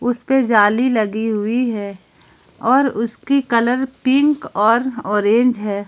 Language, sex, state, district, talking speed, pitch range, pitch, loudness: Hindi, female, Jharkhand, Ranchi, 135 wpm, 215-260 Hz, 235 Hz, -17 LUFS